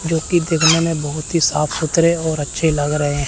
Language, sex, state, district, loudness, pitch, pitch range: Hindi, male, Chandigarh, Chandigarh, -17 LUFS, 160 Hz, 150-165 Hz